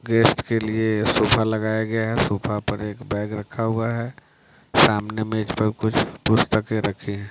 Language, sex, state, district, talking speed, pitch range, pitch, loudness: Hindi, male, Bihar, Patna, 190 wpm, 105-115 Hz, 110 Hz, -22 LUFS